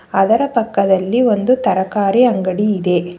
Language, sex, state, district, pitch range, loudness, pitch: Kannada, female, Karnataka, Bangalore, 190-235 Hz, -15 LUFS, 200 Hz